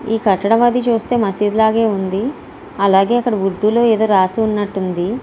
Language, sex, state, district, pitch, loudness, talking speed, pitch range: Telugu, female, Andhra Pradesh, Srikakulam, 215 Hz, -15 LUFS, 160 wpm, 195-230 Hz